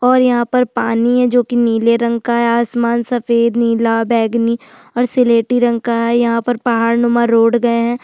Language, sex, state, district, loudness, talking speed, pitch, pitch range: Hindi, female, Chhattisgarh, Sukma, -14 LUFS, 195 wpm, 235 Hz, 230-240 Hz